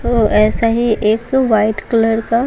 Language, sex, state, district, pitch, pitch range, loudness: Hindi, female, Bihar, Patna, 225 Hz, 215-235 Hz, -14 LUFS